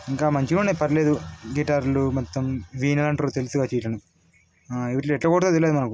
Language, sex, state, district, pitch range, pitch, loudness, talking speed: Telugu, male, Telangana, Nalgonda, 125-150 Hz, 135 Hz, -23 LUFS, 110 wpm